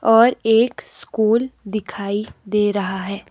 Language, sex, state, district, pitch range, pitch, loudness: Hindi, female, Himachal Pradesh, Shimla, 200-225 Hz, 215 Hz, -19 LUFS